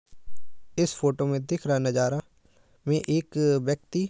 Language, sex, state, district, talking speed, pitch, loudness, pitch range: Hindi, male, Uttar Pradesh, Muzaffarnagar, 145 wpm, 145 Hz, -27 LUFS, 140-160 Hz